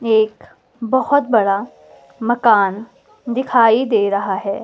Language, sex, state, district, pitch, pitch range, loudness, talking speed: Hindi, female, Himachal Pradesh, Shimla, 225 Hz, 200-245 Hz, -16 LUFS, 105 wpm